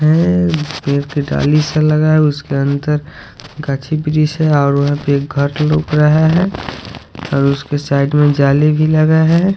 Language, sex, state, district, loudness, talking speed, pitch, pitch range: Hindi, male, Odisha, Sambalpur, -14 LUFS, 170 wpm, 150 Hz, 140-155 Hz